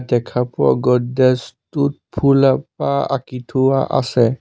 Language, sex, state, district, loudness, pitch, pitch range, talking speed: Assamese, male, Assam, Sonitpur, -17 LUFS, 125 Hz, 125-135 Hz, 120 wpm